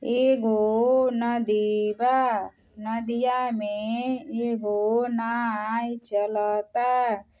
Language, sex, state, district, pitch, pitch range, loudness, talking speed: Bhojpuri, female, Uttar Pradesh, Deoria, 230 Hz, 215-245 Hz, -25 LUFS, 75 wpm